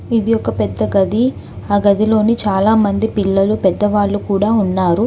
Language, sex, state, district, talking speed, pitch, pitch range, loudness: Telugu, female, Telangana, Hyderabad, 140 wpm, 205 Hz, 195-220 Hz, -15 LUFS